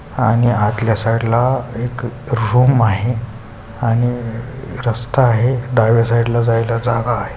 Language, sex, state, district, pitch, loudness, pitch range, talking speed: Marathi, male, Maharashtra, Pune, 120 Hz, -16 LUFS, 115-120 Hz, 130 wpm